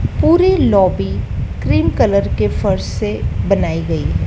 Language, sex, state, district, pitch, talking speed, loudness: Hindi, female, Madhya Pradesh, Dhar, 105 Hz, 140 wpm, -15 LUFS